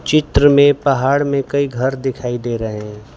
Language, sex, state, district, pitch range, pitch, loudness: Hindi, male, Gujarat, Valsad, 120-140 Hz, 135 Hz, -16 LUFS